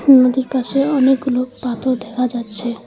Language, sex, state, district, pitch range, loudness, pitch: Bengali, female, West Bengal, Alipurduar, 245-265 Hz, -17 LUFS, 255 Hz